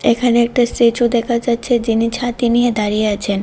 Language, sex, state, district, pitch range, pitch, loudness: Bengali, female, Tripura, West Tripura, 230-240 Hz, 235 Hz, -16 LUFS